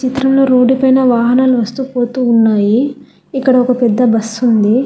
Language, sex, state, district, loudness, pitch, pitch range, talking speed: Telugu, female, Telangana, Hyderabad, -12 LUFS, 250 Hz, 235-260 Hz, 135 wpm